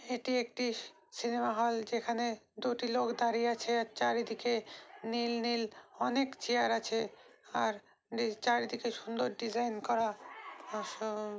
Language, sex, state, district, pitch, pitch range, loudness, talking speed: Bengali, female, West Bengal, North 24 Parganas, 235 Hz, 225-240 Hz, -35 LUFS, 125 wpm